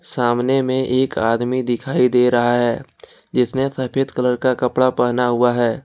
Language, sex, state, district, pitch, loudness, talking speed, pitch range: Hindi, male, Jharkhand, Ranchi, 125 Hz, -18 LUFS, 165 wpm, 120-130 Hz